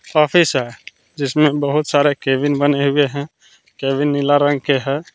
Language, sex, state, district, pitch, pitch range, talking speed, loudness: Hindi, male, Jharkhand, Palamu, 145 Hz, 140-150 Hz, 165 wpm, -17 LUFS